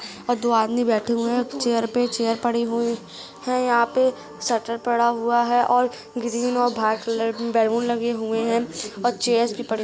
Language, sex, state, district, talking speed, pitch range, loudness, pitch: Hindi, female, Maharashtra, Chandrapur, 195 wpm, 230-245 Hz, -22 LUFS, 235 Hz